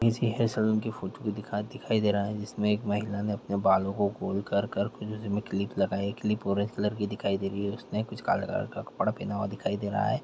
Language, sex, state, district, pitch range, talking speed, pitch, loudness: Hindi, male, Bihar, Muzaffarpur, 100-110 Hz, 260 wpm, 105 Hz, -30 LUFS